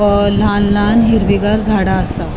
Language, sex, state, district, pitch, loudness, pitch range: Konkani, female, Goa, North and South Goa, 205 Hz, -13 LUFS, 205-215 Hz